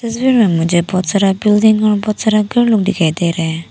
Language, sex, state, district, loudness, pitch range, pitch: Hindi, female, Arunachal Pradesh, Papum Pare, -13 LUFS, 175-215 Hz, 205 Hz